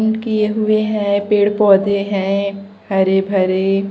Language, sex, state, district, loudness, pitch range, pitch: Hindi, female, Chhattisgarh, Raipur, -16 LUFS, 195-210 Hz, 200 Hz